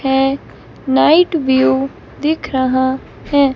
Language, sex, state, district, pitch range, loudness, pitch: Hindi, female, Himachal Pradesh, Shimla, 260-285 Hz, -15 LUFS, 265 Hz